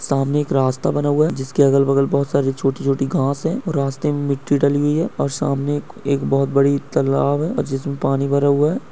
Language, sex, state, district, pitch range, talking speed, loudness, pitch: Hindi, male, Bihar, Supaul, 135-145 Hz, 215 wpm, -19 LUFS, 140 Hz